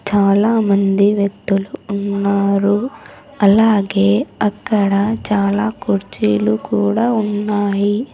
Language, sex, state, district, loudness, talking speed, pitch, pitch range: Telugu, female, Andhra Pradesh, Sri Satya Sai, -16 LUFS, 65 wpm, 200 Hz, 200-210 Hz